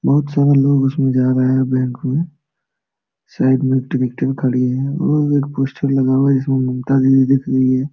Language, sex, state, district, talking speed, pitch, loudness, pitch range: Hindi, male, Bihar, Jamui, 210 wpm, 135 Hz, -16 LUFS, 130-140 Hz